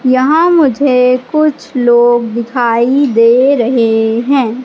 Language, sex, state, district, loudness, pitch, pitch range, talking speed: Hindi, female, Madhya Pradesh, Katni, -10 LUFS, 250 Hz, 235-275 Hz, 105 wpm